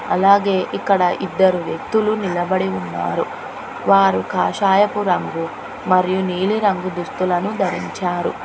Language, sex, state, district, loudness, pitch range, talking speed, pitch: Telugu, female, Telangana, Hyderabad, -18 LUFS, 175-195 Hz, 100 wpm, 185 Hz